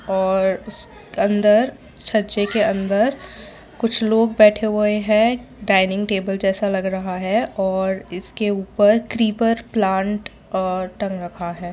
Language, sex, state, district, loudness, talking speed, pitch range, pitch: Hindi, female, Gujarat, Valsad, -19 LUFS, 130 wpm, 190-215 Hz, 205 Hz